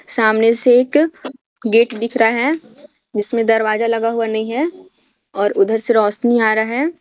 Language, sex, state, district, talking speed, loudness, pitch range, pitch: Hindi, female, Jharkhand, Garhwa, 170 wpm, -16 LUFS, 220-270 Hz, 230 Hz